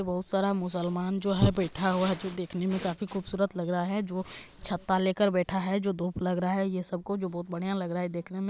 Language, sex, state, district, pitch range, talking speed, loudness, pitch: Hindi, male, Bihar, East Champaran, 180-195 Hz, 260 wpm, -30 LUFS, 185 Hz